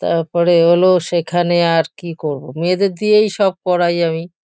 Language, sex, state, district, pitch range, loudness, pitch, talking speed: Bengali, female, West Bengal, Kolkata, 165-180 Hz, -15 LUFS, 175 Hz, 150 wpm